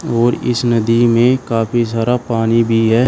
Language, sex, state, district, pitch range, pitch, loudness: Hindi, male, Uttar Pradesh, Shamli, 115-120 Hz, 115 Hz, -14 LUFS